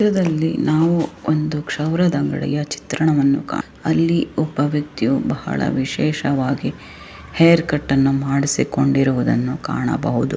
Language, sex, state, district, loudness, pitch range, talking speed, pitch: Kannada, female, Karnataka, Raichur, -19 LUFS, 135-155 Hz, 100 wpm, 145 Hz